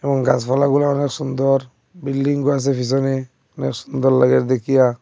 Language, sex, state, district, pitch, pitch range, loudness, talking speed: Bengali, male, Assam, Hailakandi, 135 Hz, 130-140 Hz, -18 LUFS, 145 wpm